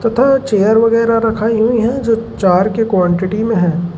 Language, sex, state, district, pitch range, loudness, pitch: Hindi, male, Madhya Pradesh, Umaria, 190-230 Hz, -13 LUFS, 225 Hz